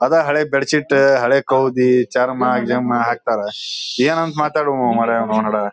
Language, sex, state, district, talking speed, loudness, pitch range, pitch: Kannada, male, Karnataka, Bijapur, 145 wpm, -17 LUFS, 120-140 Hz, 125 Hz